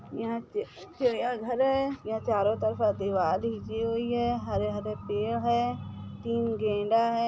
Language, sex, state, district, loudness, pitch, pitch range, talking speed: Hindi, female, Chhattisgarh, Bilaspur, -29 LUFS, 230 Hz, 215-240 Hz, 155 wpm